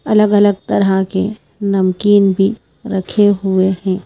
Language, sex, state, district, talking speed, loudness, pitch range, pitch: Hindi, female, Madhya Pradesh, Bhopal, 120 wpm, -14 LUFS, 190-205 Hz, 195 Hz